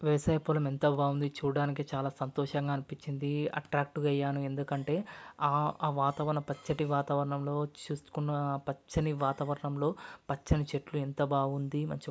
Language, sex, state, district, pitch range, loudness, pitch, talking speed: Telugu, male, Andhra Pradesh, Chittoor, 140-150 Hz, -33 LUFS, 145 Hz, 125 wpm